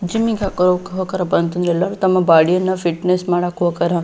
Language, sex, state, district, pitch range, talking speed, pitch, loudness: Kannada, female, Karnataka, Belgaum, 175-185 Hz, 165 wpm, 180 Hz, -17 LUFS